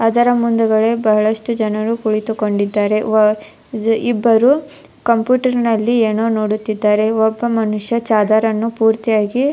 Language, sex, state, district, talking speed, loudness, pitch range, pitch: Kannada, female, Karnataka, Dharwad, 95 wpm, -15 LUFS, 215-235 Hz, 225 Hz